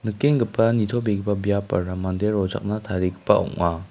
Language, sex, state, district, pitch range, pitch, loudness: Garo, male, Meghalaya, West Garo Hills, 95-110 Hz, 100 Hz, -23 LUFS